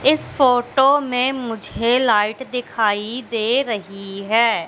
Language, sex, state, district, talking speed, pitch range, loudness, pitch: Hindi, female, Madhya Pradesh, Katni, 115 wpm, 215-260 Hz, -19 LUFS, 235 Hz